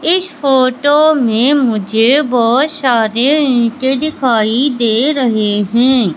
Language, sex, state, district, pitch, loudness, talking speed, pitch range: Hindi, female, Madhya Pradesh, Katni, 255 Hz, -12 LUFS, 105 wpm, 230-285 Hz